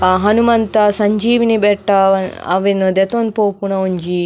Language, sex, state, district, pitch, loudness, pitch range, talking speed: Tulu, female, Karnataka, Dakshina Kannada, 200 Hz, -14 LUFS, 190-215 Hz, 125 wpm